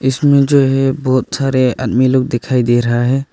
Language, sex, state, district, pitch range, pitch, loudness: Hindi, male, Arunachal Pradesh, Longding, 125-135 Hz, 130 Hz, -14 LUFS